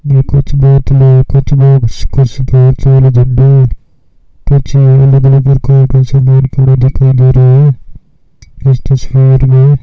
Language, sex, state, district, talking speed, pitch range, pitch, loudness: Hindi, male, Rajasthan, Bikaner, 45 wpm, 130-135 Hz, 135 Hz, -7 LUFS